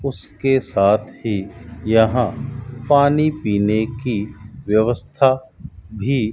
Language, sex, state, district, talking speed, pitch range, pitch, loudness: Hindi, male, Rajasthan, Bikaner, 95 wpm, 105-130 Hz, 115 Hz, -19 LUFS